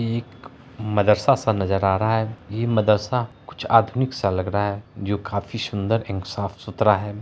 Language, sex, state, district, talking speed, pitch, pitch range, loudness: Hindi, male, Bihar, Araria, 185 wpm, 105 Hz, 100-115 Hz, -22 LUFS